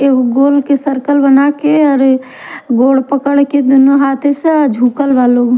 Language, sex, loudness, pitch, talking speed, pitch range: Bhojpuri, female, -11 LUFS, 275 Hz, 160 wpm, 260-285 Hz